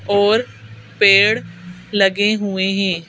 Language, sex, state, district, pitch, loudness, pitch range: Hindi, female, Madhya Pradesh, Bhopal, 195 Hz, -15 LUFS, 175-205 Hz